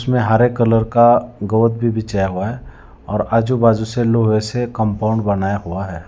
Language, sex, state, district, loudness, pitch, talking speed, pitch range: Hindi, male, Telangana, Hyderabad, -17 LUFS, 110 Hz, 190 wpm, 100-120 Hz